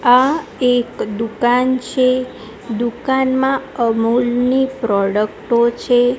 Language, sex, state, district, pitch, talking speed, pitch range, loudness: Gujarati, female, Gujarat, Gandhinagar, 245 Hz, 75 wpm, 235-260 Hz, -17 LUFS